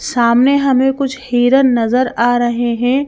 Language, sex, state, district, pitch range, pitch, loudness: Hindi, female, Madhya Pradesh, Bhopal, 240-270 Hz, 250 Hz, -13 LUFS